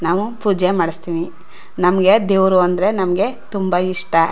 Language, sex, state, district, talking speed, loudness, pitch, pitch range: Kannada, female, Karnataka, Chamarajanagar, 125 wpm, -16 LUFS, 185 Hz, 175-195 Hz